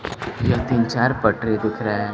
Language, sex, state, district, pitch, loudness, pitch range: Hindi, male, Bihar, Kaimur, 110 Hz, -21 LUFS, 105-120 Hz